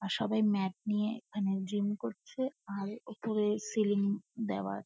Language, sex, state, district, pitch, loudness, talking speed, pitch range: Bengali, female, West Bengal, Kolkata, 210 Hz, -34 LUFS, 135 wpm, 195-215 Hz